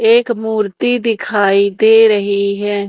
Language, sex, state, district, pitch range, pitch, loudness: Hindi, female, Madhya Pradesh, Umaria, 200-225 Hz, 210 Hz, -13 LUFS